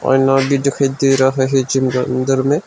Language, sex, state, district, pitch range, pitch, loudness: Hindi, male, Arunachal Pradesh, Lower Dibang Valley, 130-135 Hz, 135 Hz, -15 LUFS